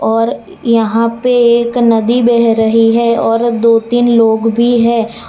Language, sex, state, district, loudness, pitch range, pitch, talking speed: Hindi, female, Gujarat, Valsad, -11 LUFS, 225-235 Hz, 230 Hz, 160 wpm